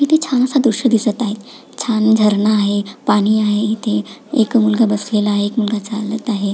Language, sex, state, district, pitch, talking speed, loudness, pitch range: Marathi, female, Maharashtra, Pune, 220 Hz, 165 wpm, -16 LUFS, 210-240 Hz